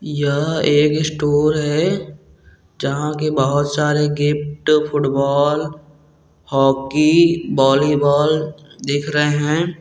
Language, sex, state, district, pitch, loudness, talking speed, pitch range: Hindi, male, Bihar, Darbhanga, 150 Hz, -17 LUFS, 100 wpm, 145-150 Hz